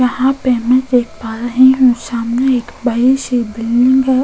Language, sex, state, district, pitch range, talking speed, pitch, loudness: Hindi, female, Goa, North and South Goa, 240-260 Hz, 185 wpm, 250 Hz, -13 LUFS